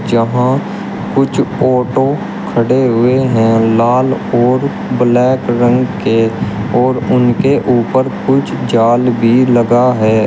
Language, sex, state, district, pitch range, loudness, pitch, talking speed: Hindi, male, Uttar Pradesh, Shamli, 115-130 Hz, -12 LUFS, 125 Hz, 110 wpm